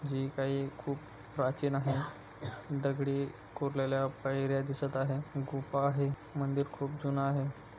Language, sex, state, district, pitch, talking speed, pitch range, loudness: Marathi, male, Maharashtra, Dhule, 140 Hz, 125 wpm, 135-140 Hz, -35 LUFS